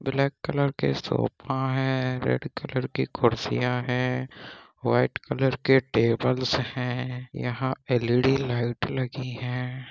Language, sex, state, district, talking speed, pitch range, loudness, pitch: Hindi, male, Bihar, Kishanganj, 115 wpm, 125-130 Hz, -26 LUFS, 125 Hz